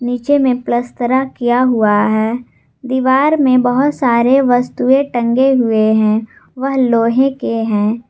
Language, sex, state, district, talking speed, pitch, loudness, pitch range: Hindi, female, Jharkhand, Garhwa, 135 wpm, 245 Hz, -14 LUFS, 230-265 Hz